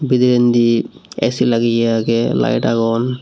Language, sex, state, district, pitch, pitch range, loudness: Chakma, male, Tripura, Unakoti, 115 Hz, 115-125 Hz, -15 LUFS